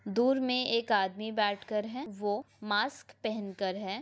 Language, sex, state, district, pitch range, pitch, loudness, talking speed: Hindi, female, Maharashtra, Pune, 205-235 Hz, 210 Hz, -32 LUFS, 165 wpm